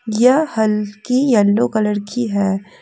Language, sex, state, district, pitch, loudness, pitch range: Hindi, female, Jharkhand, Deoghar, 215 Hz, -17 LUFS, 205-245 Hz